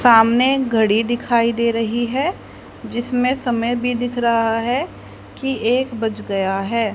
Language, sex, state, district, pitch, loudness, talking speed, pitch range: Hindi, female, Haryana, Charkhi Dadri, 235 Hz, -19 LUFS, 145 wpm, 225-245 Hz